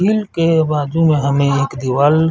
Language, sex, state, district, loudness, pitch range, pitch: Hindi, male, Chhattisgarh, Bilaspur, -15 LUFS, 140-165 Hz, 150 Hz